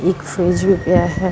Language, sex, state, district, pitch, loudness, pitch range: Punjabi, female, Karnataka, Bangalore, 180 Hz, -16 LUFS, 175-185 Hz